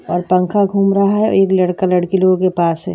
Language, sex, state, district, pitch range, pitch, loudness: Hindi, female, Bihar, Gaya, 180-195 Hz, 185 Hz, -14 LUFS